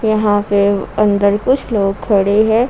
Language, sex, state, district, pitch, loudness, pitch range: Hindi, female, Jharkhand, Ranchi, 205 Hz, -14 LUFS, 200-220 Hz